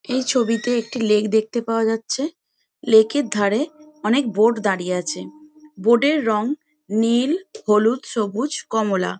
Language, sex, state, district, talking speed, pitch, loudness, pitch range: Bengali, female, West Bengal, Jhargram, 145 wpm, 230 Hz, -20 LUFS, 215-285 Hz